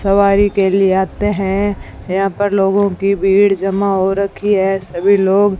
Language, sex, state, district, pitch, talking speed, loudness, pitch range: Hindi, female, Rajasthan, Bikaner, 195 Hz, 170 wpm, -14 LUFS, 195-200 Hz